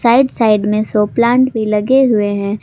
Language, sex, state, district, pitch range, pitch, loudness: Hindi, female, Jharkhand, Palamu, 210-250 Hz, 220 Hz, -13 LUFS